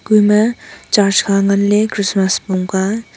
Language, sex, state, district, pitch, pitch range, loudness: Wancho, female, Arunachal Pradesh, Longding, 200 Hz, 195-210 Hz, -14 LUFS